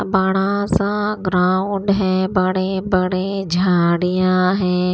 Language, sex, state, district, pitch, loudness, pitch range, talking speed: Hindi, female, Maharashtra, Washim, 185 Hz, -18 LUFS, 185-195 Hz, 95 wpm